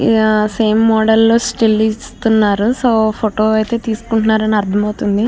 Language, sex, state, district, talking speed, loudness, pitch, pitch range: Telugu, female, Andhra Pradesh, Krishna, 150 wpm, -14 LUFS, 220 Hz, 215-225 Hz